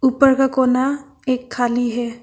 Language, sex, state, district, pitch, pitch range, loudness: Hindi, female, Arunachal Pradesh, Papum Pare, 255 Hz, 245-270 Hz, -18 LUFS